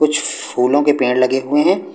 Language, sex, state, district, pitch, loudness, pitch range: Hindi, male, Punjab, Pathankot, 140 Hz, -16 LUFS, 125-150 Hz